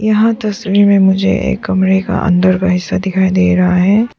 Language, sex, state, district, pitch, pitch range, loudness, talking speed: Hindi, female, Arunachal Pradesh, Papum Pare, 190 Hz, 185-205 Hz, -12 LUFS, 200 wpm